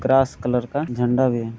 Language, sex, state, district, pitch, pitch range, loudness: Hindi, male, Bihar, Jamui, 125 Hz, 120-130 Hz, -21 LUFS